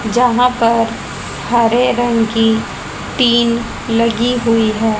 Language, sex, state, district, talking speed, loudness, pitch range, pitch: Hindi, female, Haryana, Jhajjar, 110 wpm, -14 LUFS, 225-240 Hz, 230 Hz